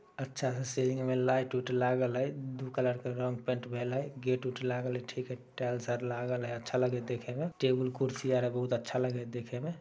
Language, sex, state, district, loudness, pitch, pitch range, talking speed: Maithili, male, Bihar, Samastipur, -34 LUFS, 125 Hz, 125-130 Hz, 280 wpm